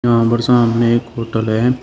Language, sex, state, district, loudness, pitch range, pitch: Hindi, male, Uttar Pradesh, Shamli, -15 LUFS, 115-120 Hz, 115 Hz